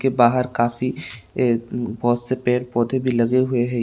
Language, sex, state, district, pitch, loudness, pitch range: Hindi, male, Tripura, West Tripura, 125 Hz, -21 LUFS, 120-125 Hz